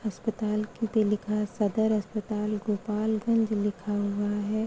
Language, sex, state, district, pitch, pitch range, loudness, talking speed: Hindi, female, Uttar Pradesh, Varanasi, 210 Hz, 210-220 Hz, -28 LUFS, 130 wpm